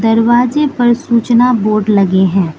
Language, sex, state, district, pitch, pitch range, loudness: Hindi, female, Manipur, Imphal West, 230 Hz, 205-240 Hz, -11 LUFS